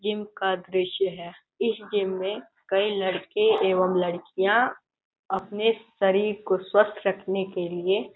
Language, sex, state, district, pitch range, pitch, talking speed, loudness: Hindi, male, Uttar Pradesh, Gorakhpur, 185-210 Hz, 195 Hz, 140 wpm, -25 LUFS